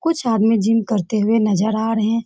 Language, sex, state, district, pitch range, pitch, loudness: Hindi, female, Bihar, Saran, 215-225 Hz, 220 Hz, -18 LUFS